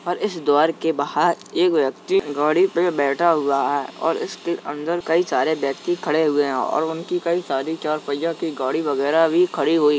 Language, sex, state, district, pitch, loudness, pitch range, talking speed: Hindi, male, Uttar Pradesh, Jalaun, 160 Hz, -21 LUFS, 145-175 Hz, 205 wpm